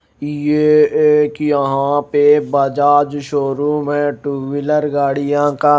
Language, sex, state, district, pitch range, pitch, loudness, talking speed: Hindi, male, Himachal Pradesh, Shimla, 145-150 Hz, 145 Hz, -15 LUFS, 115 wpm